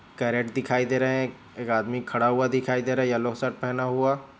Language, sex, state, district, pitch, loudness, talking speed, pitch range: Hindi, male, Chhattisgarh, Bilaspur, 125 Hz, -25 LUFS, 230 wpm, 120-130 Hz